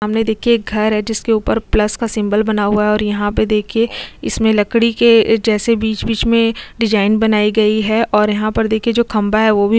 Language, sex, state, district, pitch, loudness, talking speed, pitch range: Hindi, female, Chhattisgarh, Sukma, 220 Hz, -15 LUFS, 210 wpm, 210-225 Hz